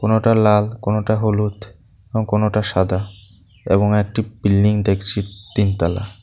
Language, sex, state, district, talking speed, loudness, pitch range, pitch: Bengali, male, Tripura, South Tripura, 115 wpm, -18 LUFS, 100-110 Hz, 105 Hz